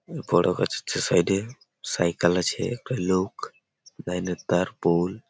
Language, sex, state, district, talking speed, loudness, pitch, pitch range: Bengali, male, West Bengal, Malda, 145 wpm, -25 LUFS, 90 Hz, 85-105 Hz